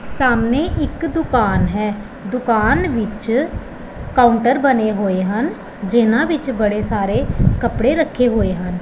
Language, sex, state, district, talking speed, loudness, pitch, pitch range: Punjabi, female, Punjab, Pathankot, 120 wpm, -17 LUFS, 235 Hz, 210-260 Hz